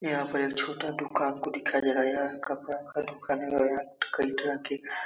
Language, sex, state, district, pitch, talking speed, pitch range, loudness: Hindi, male, Bihar, Supaul, 140 Hz, 235 wpm, 140-145 Hz, -30 LUFS